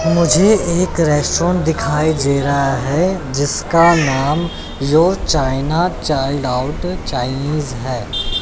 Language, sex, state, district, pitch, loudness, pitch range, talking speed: Hindi, male, Chandigarh, Chandigarh, 150 Hz, -16 LUFS, 135-170 Hz, 105 wpm